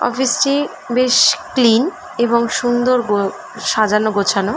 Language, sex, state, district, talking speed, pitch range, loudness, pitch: Bengali, female, West Bengal, Dakshin Dinajpur, 130 wpm, 215-265 Hz, -16 LUFS, 240 Hz